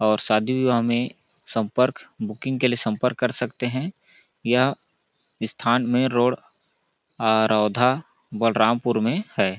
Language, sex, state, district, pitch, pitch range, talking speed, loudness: Hindi, male, Chhattisgarh, Balrampur, 125 Hz, 110-130 Hz, 130 wpm, -23 LUFS